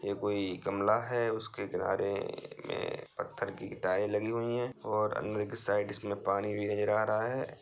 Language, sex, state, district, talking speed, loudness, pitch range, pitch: Hindi, male, Bihar, Bhagalpur, 190 wpm, -33 LUFS, 105-120 Hz, 105 Hz